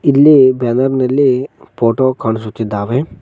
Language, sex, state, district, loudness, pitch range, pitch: Kannada, male, Karnataka, Koppal, -13 LUFS, 115-135 Hz, 130 Hz